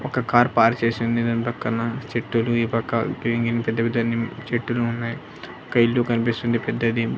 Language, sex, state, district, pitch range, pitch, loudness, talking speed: Telugu, male, Andhra Pradesh, Annamaya, 115-120 Hz, 115 Hz, -22 LUFS, 160 wpm